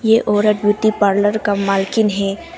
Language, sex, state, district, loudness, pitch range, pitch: Hindi, female, Arunachal Pradesh, Papum Pare, -16 LUFS, 200-215 Hz, 205 Hz